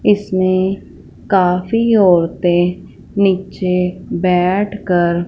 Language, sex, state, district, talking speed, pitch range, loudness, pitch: Hindi, female, Punjab, Fazilka, 55 wpm, 180-200 Hz, -15 LUFS, 185 Hz